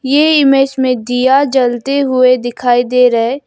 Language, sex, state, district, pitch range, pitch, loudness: Hindi, female, Arunachal Pradesh, Lower Dibang Valley, 245-275 Hz, 255 Hz, -11 LUFS